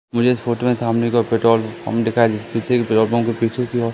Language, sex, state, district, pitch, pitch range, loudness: Hindi, male, Madhya Pradesh, Katni, 115 Hz, 115-120 Hz, -18 LUFS